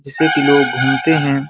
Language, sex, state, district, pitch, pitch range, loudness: Hindi, male, Bihar, Jamui, 140 Hz, 140-145 Hz, -14 LUFS